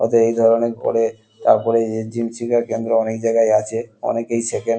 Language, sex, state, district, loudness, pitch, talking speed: Bengali, male, West Bengal, Kolkata, -19 LUFS, 115 Hz, 185 wpm